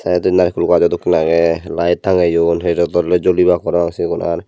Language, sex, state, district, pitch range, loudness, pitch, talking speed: Chakma, male, Tripura, Dhalai, 85-90 Hz, -15 LUFS, 85 Hz, 200 wpm